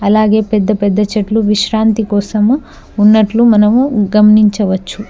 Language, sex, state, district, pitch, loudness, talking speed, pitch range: Telugu, female, Telangana, Mahabubabad, 210 Hz, -11 LUFS, 105 wpm, 210-220 Hz